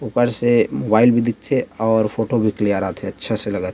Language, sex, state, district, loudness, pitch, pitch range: Chhattisgarhi, male, Chhattisgarh, Rajnandgaon, -19 LUFS, 110 Hz, 105-120 Hz